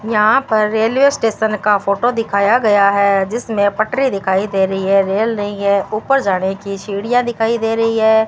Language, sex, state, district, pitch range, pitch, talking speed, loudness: Hindi, female, Rajasthan, Bikaner, 200-225 Hz, 215 Hz, 190 wpm, -15 LUFS